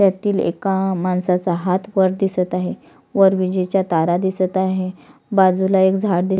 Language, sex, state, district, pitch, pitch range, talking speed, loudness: Marathi, female, Maharashtra, Solapur, 190 Hz, 180-190 Hz, 150 wpm, -18 LUFS